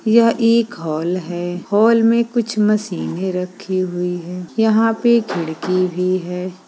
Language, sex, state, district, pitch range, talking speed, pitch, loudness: Hindi, female, Bihar, Saran, 180-225 Hz, 145 wpm, 185 Hz, -18 LUFS